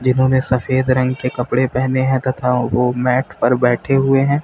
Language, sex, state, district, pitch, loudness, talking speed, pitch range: Hindi, male, Uttar Pradesh, Lalitpur, 130 Hz, -16 LUFS, 190 wpm, 125-130 Hz